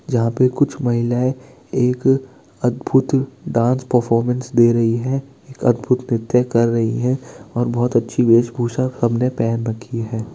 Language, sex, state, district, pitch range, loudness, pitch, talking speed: Hindi, male, Bihar, Kishanganj, 115-130 Hz, -18 LUFS, 125 Hz, 150 wpm